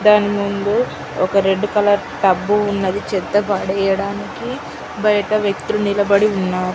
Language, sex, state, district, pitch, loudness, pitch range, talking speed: Telugu, female, Telangana, Karimnagar, 200 Hz, -18 LUFS, 195-210 Hz, 115 wpm